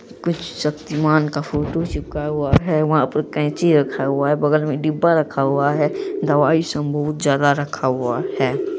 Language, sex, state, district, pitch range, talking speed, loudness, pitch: Hindi, female, Bihar, Araria, 145-155 Hz, 175 wpm, -19 LUFS, 150 Hz